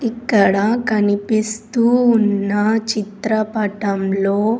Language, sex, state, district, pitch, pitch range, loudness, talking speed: Telugu, female, Andhra Pradesh, Sri Satya Sai, 215 Hz, 205-225 Hz, -17 LUFS, 65 wpm